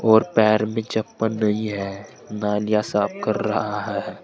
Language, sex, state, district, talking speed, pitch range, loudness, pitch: Hindi, male, Uttar Pradesh, Saharanpur, 155 wpm, 105-110 Hz, -22 LUFS, 110 Hz